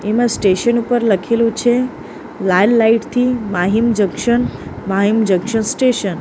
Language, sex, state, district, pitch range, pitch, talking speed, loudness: Gujarati, female, Maharashtra, Mumbai Suburban, 200-240 Hz, 225 Hz, 135 wpm, -15 LUFS